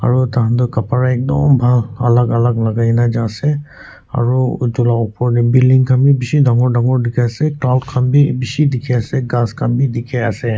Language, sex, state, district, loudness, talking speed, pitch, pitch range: Nagamese, male, Nagaland, Kohima, -15 LUFS, 195 wpm, 125 Hz, 120-130 Hz